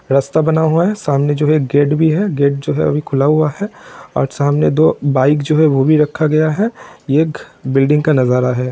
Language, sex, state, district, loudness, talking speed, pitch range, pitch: Hindi, male, Jharkhand, Sahebganj, -14 LUFS, 235 wpm, 140-155 Hz, 150 Hz